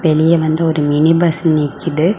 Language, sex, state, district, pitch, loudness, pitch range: Tamil, female, Tamil Nadu, Kanyakumari, 160 Hz, -14 LUFS, 155-165 Hz